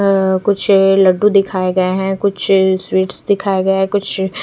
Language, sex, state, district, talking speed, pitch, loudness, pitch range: Hindi, female, Chandigarh, Chandigarh, 160 wpm, 195 Hz, -14 LUFS, 190-200 Hz